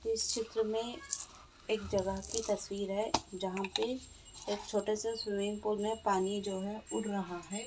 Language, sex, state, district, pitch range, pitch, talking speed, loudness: Hindi, female, Goa, North and South Goa, 200-220 Hz, 210 Hz, 180 wpm, -36 LUFS